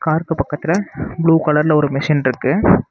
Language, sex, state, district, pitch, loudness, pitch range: Tamil, male, Tamil Nadu, Namakkal, 150 Hz, -16 LUFS, 145-165 Hz